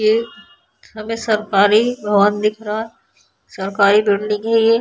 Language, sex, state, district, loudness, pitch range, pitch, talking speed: Hindi, female, Bihar, Vaishali, -17 LUFS, 205-225 Hz, 215 Hz, 150 wpm